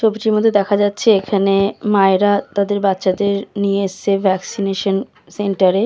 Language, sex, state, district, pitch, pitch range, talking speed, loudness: Bengali, female, West Bengal, Kolkata, 200 Hz, 195-205 Hz, 110 wpm, -16 LUFS